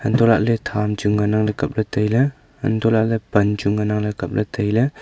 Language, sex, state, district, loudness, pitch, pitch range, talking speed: Wancho, male, Arunachal Pradesh, Longding, -19 LUFS, 110 Hz, 105-115 Hz, 240 wpm